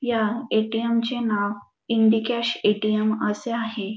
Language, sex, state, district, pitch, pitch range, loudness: Marathi, female, Maharashtra, Dhule, 220 Hz, 215-235 Hz, -23 LUFS